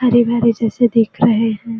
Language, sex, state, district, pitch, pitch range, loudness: Hindi, female, Chhattisgarh, Bilaspur, 230 Hz, 225-235 Hz, -15 LUFS